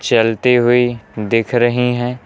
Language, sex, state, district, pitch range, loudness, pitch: Hindi, male, Uttar Pradesh, Lucknow, 115-125 Hz, -15 LUFS, 120 Hz